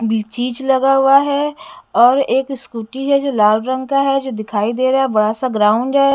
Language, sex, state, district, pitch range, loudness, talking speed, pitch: Hindi, female, Bihar, West Champaran, 225-275 Hz, -15 LUFS, 205 wpm, 260 Hz